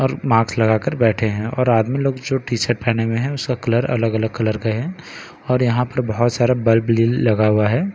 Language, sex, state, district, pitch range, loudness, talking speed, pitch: Hindi, male, Bihar, Katihar, 115-125 Hz, -18 LUFS, 225 wpm, 120 Hz